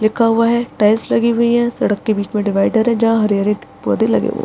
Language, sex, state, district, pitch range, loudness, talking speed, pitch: Hindi, female, Bihar, Madhepura, 210-235 Hz, -15 LUFS, 245 wpm, 225 Hz